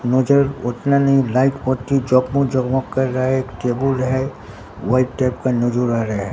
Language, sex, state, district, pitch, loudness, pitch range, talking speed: Hindi, male, Bihar, Katihar, 130 Hz, -18 LUFS, 120-135 Hz, 180 wpm